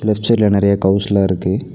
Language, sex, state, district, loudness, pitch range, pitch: Tamil, male, Tamil Nadu, Nilgiris, -15 LUFS, 100-105 Hz, 100 Hz